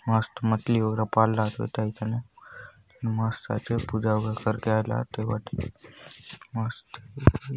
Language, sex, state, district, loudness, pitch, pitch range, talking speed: Halbi, male, Chhattisgarh, Bastar, -28 LUFS, 110 Hz, 110-115 Hz, 145 wpm